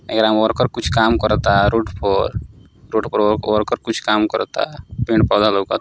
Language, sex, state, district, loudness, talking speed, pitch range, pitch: Maithili, male, Bihar, Samastipur, -17 LUFS, 185 wpm, 105-115 Hz, 110 Hz